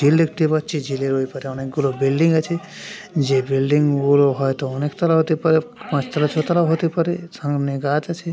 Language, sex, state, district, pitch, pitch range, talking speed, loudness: Bengali, male, West Bengal, Purulia, 150 Hz, 135-165 Hz, 195 wpm, -20 LUFS